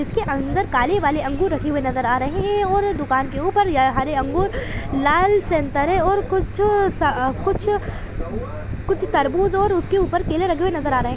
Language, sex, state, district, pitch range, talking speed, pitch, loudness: Hindi, female, Chhattisgarh, Bilaspur, 285-395 Hz, 195 wpm, 370 Hz, -20 LUFS